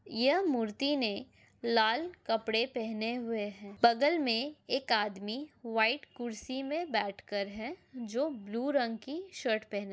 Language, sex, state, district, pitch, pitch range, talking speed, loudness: Hindi, female, Andhra Pradesh, Anantapur, 235 Hz, 220-275 Hz, 145 wpm, -33 LUFS